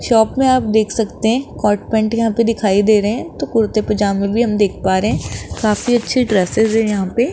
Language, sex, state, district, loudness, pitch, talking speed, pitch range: Hindi, female, Rajasthan, Jaipur, -16 LUFS, 220 Hz, 245 wpm, 210-230 Hz